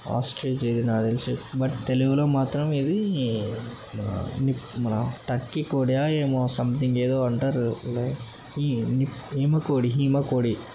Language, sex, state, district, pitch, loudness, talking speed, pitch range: Telugu, male, Telangana, Nalgonda, 130 Hz, -25 LUFS, 130 wpm, 120-135 Hz